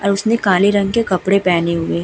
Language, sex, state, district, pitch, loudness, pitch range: Hindi, female, Uttar Pradesh, Hamirpur, 195 Hz, -15 LUFS, 175-200 Hz